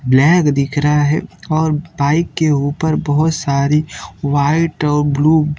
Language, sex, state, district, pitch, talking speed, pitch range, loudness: Hindi, male, Maharashtra, Mumbai Suburban, 150 Hz, 150 wpm, 145-160 Hz, -15 LUFS